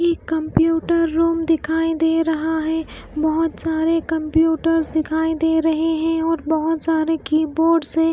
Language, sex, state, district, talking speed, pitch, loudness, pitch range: Hindi, female, Bihar, West Champaran, 140 wpm, 325 Hz, -19 LUFS, 320-325 Hz